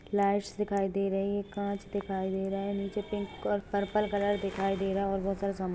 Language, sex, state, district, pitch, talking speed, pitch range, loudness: Hindi, female, Jharkhand, Sahebganj, 200 Hz, 230 wpm, 195-205 Hz, -32 LUFS